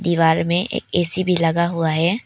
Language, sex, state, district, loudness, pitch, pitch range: Hindi, female, Arunachal Pradesh, Papum Pare, -19 LUFS, 170 Hz, 165-175 Hz